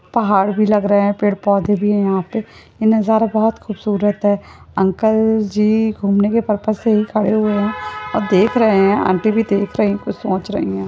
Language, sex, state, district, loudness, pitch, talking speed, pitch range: Hindi, female, Maharashtra, Nagpur, -16 LUFS, 210 Hz, 210 wpm, 200-220 Hz